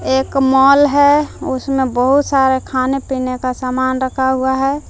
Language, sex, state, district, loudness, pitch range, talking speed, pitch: Hindi, female, Jharkhand, Palamu, -15 LUFS, 260-275 Hz, 160 wpm, 265 Hz